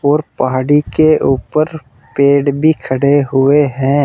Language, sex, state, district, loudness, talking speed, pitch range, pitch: Hindi, male, Uttar Pradesh, Saharanpur, -13 LUFS, 135 wpm, 135-150 Hz, 140 Hz